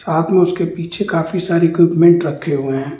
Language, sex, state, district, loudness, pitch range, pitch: Hindi, male, Delhi, New Delhi, -15 LUFS, 160-175 Hz, 170 Hz